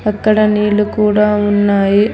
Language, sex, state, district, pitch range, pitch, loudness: Telugu, female, Telangana, Hyderabad, 205-210 Hz, 210 Hz, -13 LUFS